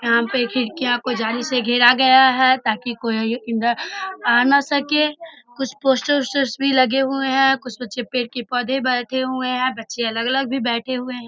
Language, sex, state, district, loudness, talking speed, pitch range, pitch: Hindi, female, Bihar, Darbhanga, -19 LUFS, 195 wpm, 240-270 Hz, 255 Hz